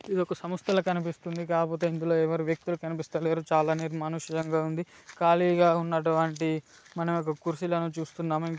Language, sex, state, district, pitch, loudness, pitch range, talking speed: Telugu, male, Telangana, Nalgonda, 165 Hz, -28 LUFS, 160-170 Hz, 140 wpm